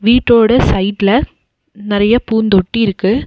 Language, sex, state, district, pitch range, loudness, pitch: Tamil, female, Tamil Nadu, Nilgiris, 200-230 Hz, -12 LUFS, 220 Hz